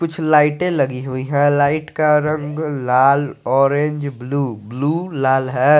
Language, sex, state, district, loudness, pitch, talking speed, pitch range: Hindi, male, Jharkhand, Garhwa, -17 LUFS, 145 Hz, 145 wpm, 135-150 Hz